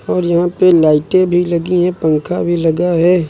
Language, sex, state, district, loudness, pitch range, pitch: Hindi, male, Uttar Pradesh, Lucknow, -13 LUFS, 165-180 Hz, 175 Hz